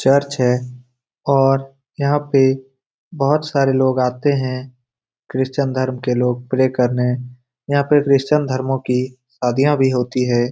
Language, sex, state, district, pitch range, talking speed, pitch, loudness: Hindi, male, Bihar, Lakhisarai, 125-135 Hz, 140 wpm, 130 Hz, -18 LUFS